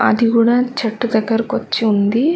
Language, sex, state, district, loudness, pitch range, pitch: Telugu, female, Andhra Pradesh, Chittoor, -16 LUFS, 225-245 Hz, 230 Hz